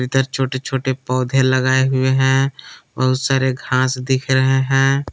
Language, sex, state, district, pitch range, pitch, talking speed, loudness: Hindi, male, Jharkhand, Palamu, 130-135 Hz, 130 Hz, 150 wpm, -17 LUFS